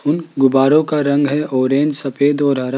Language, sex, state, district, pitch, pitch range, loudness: Hindi, male, Rajasthan, Jaipur, 140 Hz, 135-150 Hz, -15 LUFS